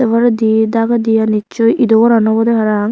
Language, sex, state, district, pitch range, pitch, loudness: Chakma, female, Tripura, Unakoti, 220-230 Hz, 225 Hz, -12 LUFS